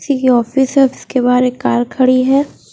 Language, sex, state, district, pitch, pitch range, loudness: Hindi, female, Haryana, Charkhi Dadri, 255 Hz, 250-270 Hz, -13 LUFS